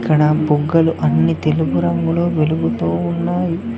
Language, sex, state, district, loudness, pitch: Telugu, male, Telangana, Mahabubabad, -17 LUFS, 155 Hz